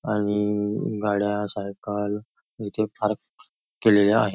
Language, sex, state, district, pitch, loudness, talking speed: Marathi, male, Maharashtra, Nagpur, 105 Hz, -25 LUFS, 95 wpm